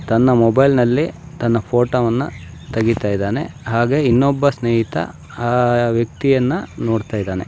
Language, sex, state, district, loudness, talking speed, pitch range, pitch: Kannada, male, Karnataka, Shimoga, -17 LUFS, 120 wpm, 115-130 Hz, 120 Hz